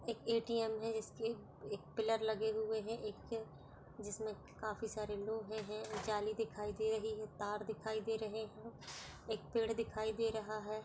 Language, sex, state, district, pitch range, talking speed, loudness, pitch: Hindi, female, Rajasthan, Nagaur, 215-225 Hz, 160 wpm, -41 LUFS, 220 Hz